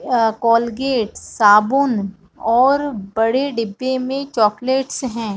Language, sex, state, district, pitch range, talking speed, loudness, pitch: Hindi, female, Chhattisgarh, Bastar, 220-265 Hz, 90 wpm, -17 LUFS, 235 Hz